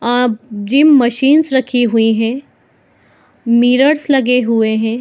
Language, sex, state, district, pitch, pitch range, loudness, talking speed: Hindi, female, Bihar, Madhepura, 245 Hz, 230-270 Hz, -13 LUFS, 120 wpm